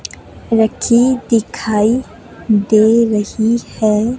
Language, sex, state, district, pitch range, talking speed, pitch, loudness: Hindi, female, Himachal Pradesh, Shimla, 215-235 Hz, 70 wpm, 225 Hz, -14 LUFS